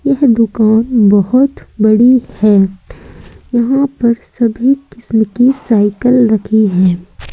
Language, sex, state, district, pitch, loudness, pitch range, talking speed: Hindi, female, Madhya Pradesh, Umaria, 230 Hz, -11 LUFS, 215-250 Hz, 105 wpm